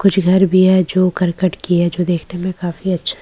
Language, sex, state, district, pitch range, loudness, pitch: Hindi, female, Bihar, Katihar, 175-185 Hz, -15 LUFS, 180 Hz